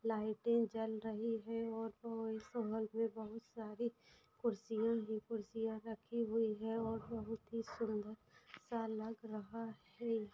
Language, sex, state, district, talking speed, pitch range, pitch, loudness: Hindi, female, Maharashtra, Pune, 120 wpm, 220-230 Hz, 225 Hz, -42 LUFS